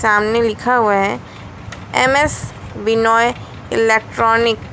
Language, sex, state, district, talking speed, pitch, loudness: Hindi, female, West Bengal, Alipurduar, 100 wpm, 220 Hz, -15 LUFS